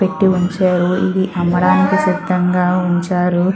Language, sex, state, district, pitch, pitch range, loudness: Telugu, female, Andhra Pradesh, Chittoor, 180 Hz, 180-185 Hz, -15 LUFS